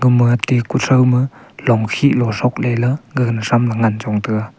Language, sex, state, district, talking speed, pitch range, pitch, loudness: Wancho, male, Arunachal Pradesh, Longding, 195 wpm, 115-125 Hz, 120 Hz, -16 LUFS